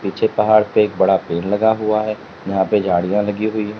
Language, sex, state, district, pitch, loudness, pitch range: Hindi, male, Uttar Pradesh, Lalitpur, 105 Hz, -17 LUFS, 100-110 Hz